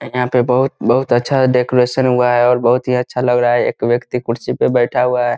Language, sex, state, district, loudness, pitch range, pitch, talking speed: Hindi, male, Bihar, Muzaffarpur, -15 LUFS, 120-125 Hz, 125 Hz, 255 wpm